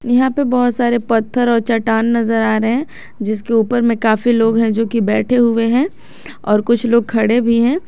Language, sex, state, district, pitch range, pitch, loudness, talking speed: Hindi, female, Jharkhand, Garhwa, 225-245 Hz, 235 Hz, -15 LUFS, 215 wpm